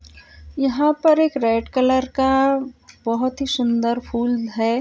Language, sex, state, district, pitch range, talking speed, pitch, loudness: Hindi, female, Uttar Pradesh, Jyotiba Phule Nagar, 230-270 Hz, 125 wpm, 255 Hz, -20 LUFS